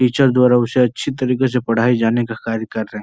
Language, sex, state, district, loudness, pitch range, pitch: Hindi, male, Uttar Pradesh, Etah, -17 LUFS, 115-125 Hz, 120 Hz